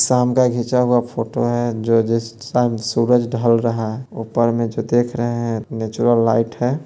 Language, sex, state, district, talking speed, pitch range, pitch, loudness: Hindi, male, Bihar, Muzaffarpur, 190 wpm, 115-120 Hz, 120 Hz, -18 LUFS